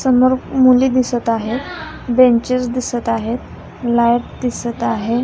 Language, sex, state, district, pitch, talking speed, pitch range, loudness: Marathi, female, Maharashtra, Pune, 245 Hz, 115 wpm, 235-255 Hz, -16 LUFS